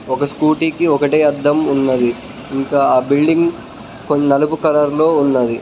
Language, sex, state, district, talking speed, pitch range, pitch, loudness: Telugu, male, Telangana, Mahabubabad, 140 wpm, 135-155 Hz, 145 Hz, -15 LUFS